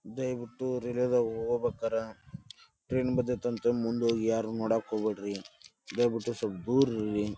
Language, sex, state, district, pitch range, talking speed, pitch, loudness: Kannada, male, Karnataka, Dharwad, 110-125 Hz, 130 wpm, 115 Hz, -31 LUFS